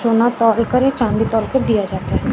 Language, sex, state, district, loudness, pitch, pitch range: Hindi, female, Chhattisgarh, Raipur, -17 LUFS, 225 Hz, 215-240 Hz